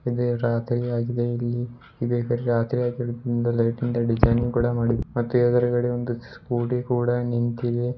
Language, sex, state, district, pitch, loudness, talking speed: Kannada, male, Karnataka, Bidar, 120 Hz, -24 LUFS, 105 wpm